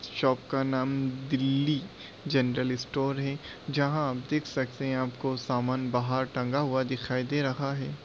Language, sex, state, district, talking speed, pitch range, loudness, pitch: Hindi, male, Uttar Pradesh, Budaun, 155 wpm, 130-140 Hz, -30 LUFS, 135 Hz